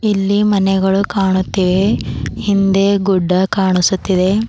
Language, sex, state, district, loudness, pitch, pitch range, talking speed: Kannada, female, Karnataka, Bidar, -15 LUFS, 195 Hz, 190-200 Hz, 80 wpm